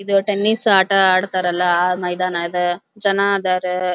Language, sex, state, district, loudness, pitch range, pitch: Kannada, female, Karnataka, Belgaum, -17 LUFS, 180-200 Hz, 185 Hz